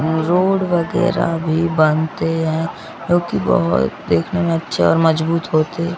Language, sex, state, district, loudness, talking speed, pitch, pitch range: Hindi, male, Bihar, Kaimur, -17 LUFS, 140 wpm, 165 Hz, 160-170 Hz